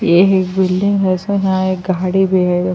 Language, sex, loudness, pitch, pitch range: Urdu, female, -15 LUFS, 185 Hz, 185-190 Hz